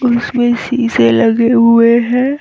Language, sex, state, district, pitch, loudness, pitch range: Hindi, female, Haryana, Rohtak, 240 Hz, -11 LUFS, 230-245 Hz